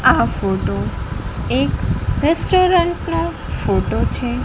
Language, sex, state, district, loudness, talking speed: Gujarati, female, Gujarat, Gandhinagar, -18 LUFS, 95 wpm